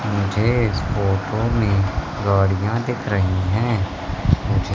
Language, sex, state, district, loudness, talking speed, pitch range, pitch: Hindi, male, Madhya Pradesh, Katni, -20 LUFS, 115 wpm, 95-110 Hz, 100 Hz